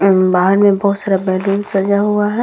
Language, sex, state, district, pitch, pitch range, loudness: Hindi, female, Bihar, Vaishali, 195 Hz, 190-205 Hz, -14 LUFS